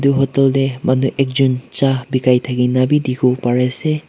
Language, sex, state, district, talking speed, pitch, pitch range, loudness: Nagamese, male, Nagaland, Kohima, 160 wpm, 130 Hz, 125-135 Hz, -16 LUFS